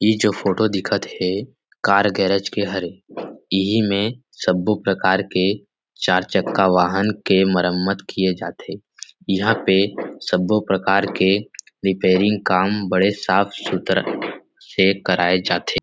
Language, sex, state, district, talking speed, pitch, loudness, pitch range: Chhattisgarhi, male, Chhattisgarh, Rajnandgaon, 130 wpm, 95 Hz, -19 LUFS, 95-100 Hz